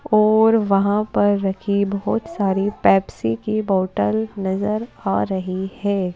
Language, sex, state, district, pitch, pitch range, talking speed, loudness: Hindi, female, Madhya Pradesh, Bhopal, 200 Hz, 190-215 Hz, 125 wpm, -20 LUFS